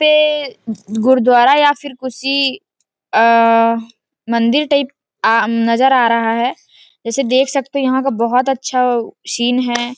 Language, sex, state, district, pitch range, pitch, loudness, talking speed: Hindi, female, Chhattisgarh, Rajnandgaon, 230-275 Hz, 250 Hz, -14 LUFS, 130 wpm